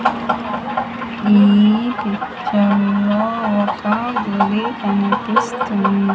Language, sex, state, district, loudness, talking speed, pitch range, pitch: Telugu, female, Andhra Pradesh, Manyam, -17 LUFS, 60 wpm, 205-245 Hz, 210 Hz